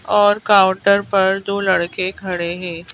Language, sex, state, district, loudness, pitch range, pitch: Hindi, female, Madhya Pradesh, Bhopal, -17 LUFS, 180-200 Hz, 190 Hz